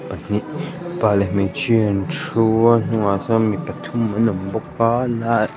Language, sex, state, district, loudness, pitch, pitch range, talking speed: Mizo, male, Mizoram, Aizawl, -19 LUFS, 115 Hz, 105-115 Hz, 170 wpm